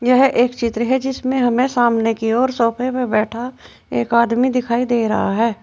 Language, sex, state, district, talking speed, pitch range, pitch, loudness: Hindi, female, Uttar Pradesh, Saharanpur, 190 wpm, 230-255 Hz, 240 Hz, -17 LUFS